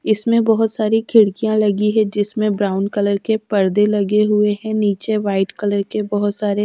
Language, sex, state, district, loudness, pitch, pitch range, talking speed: Hindi, female, Haryana, Rohtak, -17 LUFS, 210 Hz, 205-215 Hz, 180 wpm